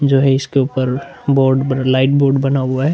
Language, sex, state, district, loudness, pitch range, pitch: Hindi, male, Chhattisgarh, Korba, -15 LUFS, 130-140 Hz, 135 Hz